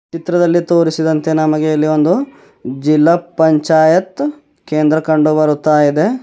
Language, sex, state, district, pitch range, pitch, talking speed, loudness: Kannada, male, Karnataka, Bidar, 155-175 Hz, 160 Hz, 85 wpm, -13 LUFS